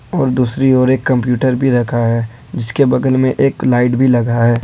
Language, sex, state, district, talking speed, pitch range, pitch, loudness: Hindi, male, Jharkhand, Ranchi, 205 wpm, 120-130 Hz, 125 Hz, -14 LUFS